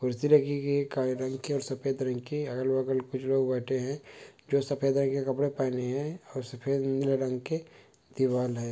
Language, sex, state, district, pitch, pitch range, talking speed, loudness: Hindi, male, West Bengal, Malda, 135 Hz, 130-140 Hz, 215 wpm, -30 LUFS